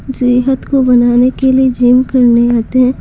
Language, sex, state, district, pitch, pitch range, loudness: Hindi, female, Bihar, Patna, 255 Hz, 245-260 Hz, -10 LUFS